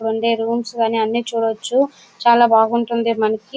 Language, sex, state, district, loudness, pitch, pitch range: Telugu, female, Karnataka, Bellary, -17 LUFS, 230 Hz, 225-235 Hz